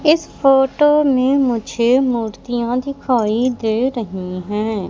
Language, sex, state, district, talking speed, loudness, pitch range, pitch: Hindi, female, Madhya Pradesh, Katni, 110 wpm, -17 LUFS, 220-270 Hz, 245 Hz